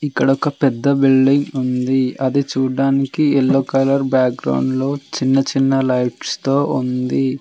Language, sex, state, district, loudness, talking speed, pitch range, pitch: Telugu, male, Telangana, Mahabubabad, -17 LUFS, 130 wpm, 130-140 Hz, 135 Hz